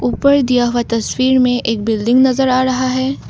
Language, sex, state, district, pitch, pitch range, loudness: Hindi, female, Assam, Kamrup Metropolitan, 255 Hz, 235-260 Hz, -14 LUFS